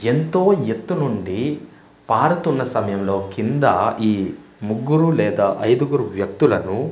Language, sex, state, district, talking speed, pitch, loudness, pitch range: Telugu, male, Andhra Pradesh, Manyam, 105 wpm, 110 Hz, -19 LUFS, 100-155 Hz